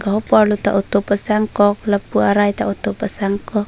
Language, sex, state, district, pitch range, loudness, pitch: Karbi, female, Assam, Karbi Anglong, 200-210 Hz, -17 LUFS, 205 Hz